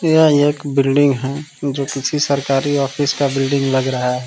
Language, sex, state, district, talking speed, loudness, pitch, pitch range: Hindi, male, Jharkhand, Palamu, 185 wpm, -17 LUFS, 140 Hz, 135-145 Hz